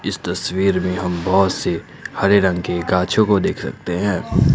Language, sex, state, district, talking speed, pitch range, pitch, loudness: Hindi, male, Assam, Kamrup Metropolitan, 185 wpm, 90-100 Hz, 95 Hz, -19 LUFS